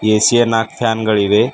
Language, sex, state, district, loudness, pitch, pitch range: Kannada, male, Karnataka, Bidar, -14 LUFS, 110 Hz, 110-115 Hz